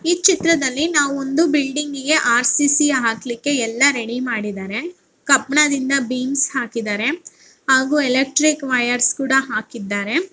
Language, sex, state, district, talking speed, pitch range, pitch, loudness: Kannada, female, Karnataka, Bellary, 110 wpm, 245-295 Hz, 270 Hz, -17 LUFS